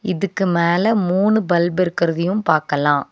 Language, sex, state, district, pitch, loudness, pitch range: Tamil, female, Tamil Nadu, Nilgiris, 180 Hz, -18 LUFS, 170-195 Hz